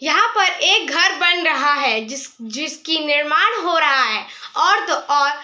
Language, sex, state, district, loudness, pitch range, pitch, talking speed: Hindi, female, Bihar, Araria, -16 LUFS, 285-350 Hz, 310 Hz, 190 wpm